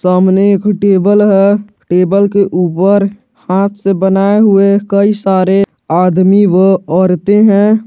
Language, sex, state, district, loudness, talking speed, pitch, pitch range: Hindi, male, Jharkhand, Garhwa, -10 LUFS, 130 wpm, 195 Hz, 185-205 Hz